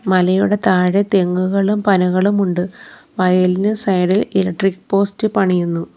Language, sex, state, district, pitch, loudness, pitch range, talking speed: Malayalam, female, Kerala, Kollam, 190 Hz, -16 LUFS, 180-200 Hz, 110 wpm